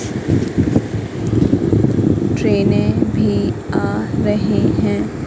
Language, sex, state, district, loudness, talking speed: Hindi, female, Madhya Pradesh, Katni, -17 LUFS, 70 wpm